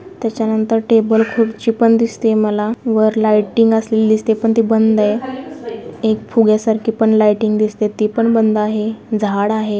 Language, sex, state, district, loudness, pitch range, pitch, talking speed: Marathi, female, Maharashtra, Sindhudurg, -15 LUFS, 215-225 Hz, 220 Hz, 165 wpm